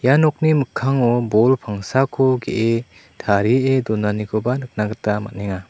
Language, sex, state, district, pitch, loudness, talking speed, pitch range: Garo, male, Meghalaya, South Garo Hills, 115 Hz, -19 LUFS, 115 wpm, 105-130 Hz